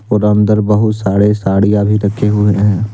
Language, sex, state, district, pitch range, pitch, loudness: Hindi, male, Jharkhand, Deoghar, 100-105 Hz, 105 Hz, -12 LUFS